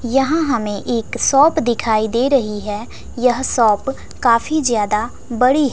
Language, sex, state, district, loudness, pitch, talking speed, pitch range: Hindi, female, Bihar, West Champaran, -17 LUFS, 240 Hz, 135 wpm, 220-270 Hz